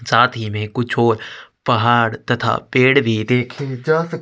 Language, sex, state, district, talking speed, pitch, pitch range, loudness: Hindi, male, Chhattisgarh, Sukma, 185 wpm, 125 Hz, 115-130 Hz, -17 LUFS